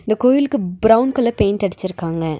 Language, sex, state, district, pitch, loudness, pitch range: Tamil, female, Tamil Nadu, Nilgiris, 215 Hz, -17 LUFS, 180-245 Hz